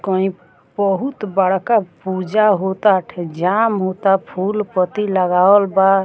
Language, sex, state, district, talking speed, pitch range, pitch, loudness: Bhojpuri, female, Bihar, Muzaffarpur, 120 wpm, 185-205 Hz, 195 Hz, -17 LUFS